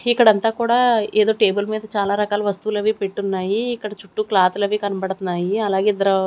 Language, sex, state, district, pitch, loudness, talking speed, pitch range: Telugu, female, Andhra Pradesh, Manyam, 205 Hz, -19 LUFS, 145 wpm, 195-215 Hz